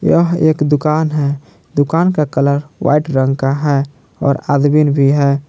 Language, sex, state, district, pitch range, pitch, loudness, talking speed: Hindi, male, Jharkhand, Palamu, 140-150 Hz, 145 Hz, -14 LUFS, 165 wpm